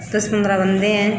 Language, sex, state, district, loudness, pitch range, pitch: Hindi, female, Rajasthan, Churu, -18 LUFS, 195-210 Hz, 210 Hz